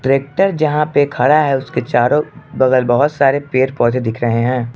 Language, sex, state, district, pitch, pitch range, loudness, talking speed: Hindi, male, Arunachal Pradesh, Lower Dibang Valley, 135 Hz, 120-145 Hz, -15 LUFS, 190 wpm